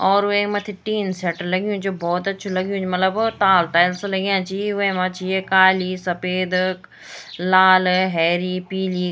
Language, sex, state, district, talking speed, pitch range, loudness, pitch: Garhwali, female, Uttarakhand, Tehri Garhwal, 165 wpm, 180-195 Hz, -19 LUFS, 185 Hz